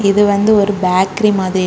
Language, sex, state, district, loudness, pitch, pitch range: Tamil, female, Tamil Nadu, Kanyakumari, -13 LUFS, 200 Hz, 185-205 Hz